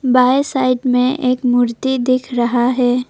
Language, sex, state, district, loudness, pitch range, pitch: Hindi, female, Assam, Kamrup Metropolitan, -15 LUFS, 245-255 Hz, 255 Hz